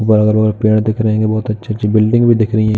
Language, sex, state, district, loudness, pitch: Hindi, male, Uttar Pradesh, Jalaun, -13 LUFS, 110 Hz